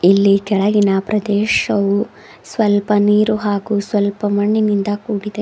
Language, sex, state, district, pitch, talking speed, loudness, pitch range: Kannada, female, Karnataka, Bidar, 205 Hz, 100 wpm, -16 LUFS, 200-210 Hz